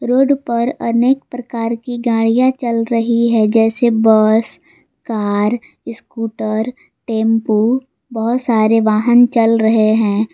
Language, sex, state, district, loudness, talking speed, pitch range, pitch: Hindi, female, Jharkhand, Palamu, -15 LUFS, 115 wpm, 220-240 Hz, 230 Hz